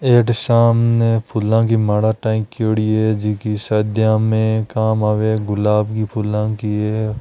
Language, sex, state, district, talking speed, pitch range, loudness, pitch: Marwari, male, Rajasthan, Nagaur, 140 wpm, 105-110 Hz, -17 LUFS, 110 Hz